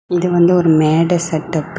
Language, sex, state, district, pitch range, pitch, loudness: Tamil, female, Tamil Nadu, Kanyakumari, 160-175 Hz, 170 Hz, -14 LUFS